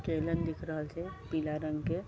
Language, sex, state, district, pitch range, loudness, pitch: Maithili, female, Bihar, Vaishali, 155-165 Hz, -36 LUFS, 160 Hz